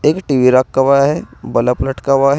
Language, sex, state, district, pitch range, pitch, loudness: Hindi, male, Uttar Pradesh, Saharanpur, 130-140 Hz, 135 Hz, -14 LUFS